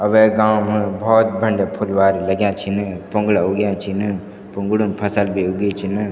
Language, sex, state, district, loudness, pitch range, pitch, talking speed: Garhwali, male, Uttarakhand, Tehri Garhwal, -18 LUFS, 100-105 Hz, 100 Hz, 175 wpm